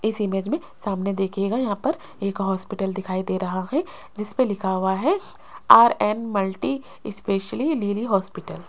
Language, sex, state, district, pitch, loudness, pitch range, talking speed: Hindi, female, Rajasthan, Jaipur, 200 Hz, -23 LUFS, 195-235 Hz, 160 wpm